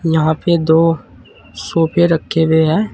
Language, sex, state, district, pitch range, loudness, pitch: Hindi, male, Uttar Pradesh, Saharanpur, 160-170 Hz, -14 LUFS, 160 Hz